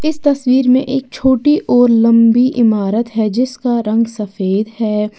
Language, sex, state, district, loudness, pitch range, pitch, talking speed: Hindi, female, Uttar Pradesh, Lalitpur, -13 LUFS, 220-260 Hz, 235 Hz, 150 wpm